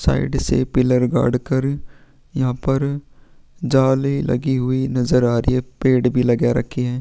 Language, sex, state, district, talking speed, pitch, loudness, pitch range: Hindi, male, Chhattisgarh, Sukma, 160 wpm, 130 Hz, -19 LUFS, 125-135 Hz